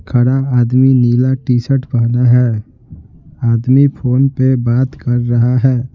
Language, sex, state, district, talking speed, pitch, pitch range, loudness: Hindi, male, Bihar, Patna, 140 wpm, 125 Hz, 120-130 Hz, -13 LUFS